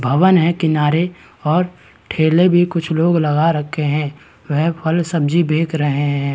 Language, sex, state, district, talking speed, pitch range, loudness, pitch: Hindi, male, Uttarakhand, Tehri Garhwal, 160 wpm, 150-170 Hz, -16 LUFS, 160 Hz